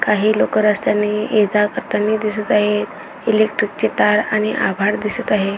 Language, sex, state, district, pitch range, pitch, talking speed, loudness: Marathi, female, Maharashtra, Sindhudurg, 210-215 Hz, 210 Hz, 160 wpm, -17 LUFS